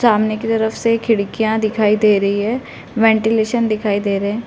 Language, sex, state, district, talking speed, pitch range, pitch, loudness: Hindi, female, Uttar Pradesh, Varanasi, 185 wpm, 210-225 Hz, 220 Hz, -16 LUFS